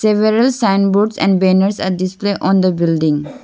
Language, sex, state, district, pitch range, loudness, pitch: English, female, Arunachal Pradesh, Lower Dibang Valley, 185-210 Hz, -14 LUFS, 195 Hz